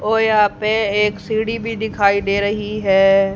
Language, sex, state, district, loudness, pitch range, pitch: Hindi, female, Haryana, Charkhi Dadri, -17 LUFS, 200-220 Hz, 210 Hz